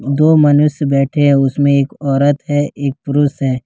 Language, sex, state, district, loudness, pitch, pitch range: Hindi, male, Jharkhand, Ranchi, -13 LUFS, 140 Hz, 140-145 Hz